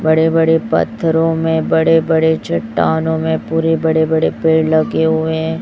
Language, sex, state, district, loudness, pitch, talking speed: Hindi, male, Chhattisgarh, Raipur, -14 LUFS, 160 Hz, 160 wpm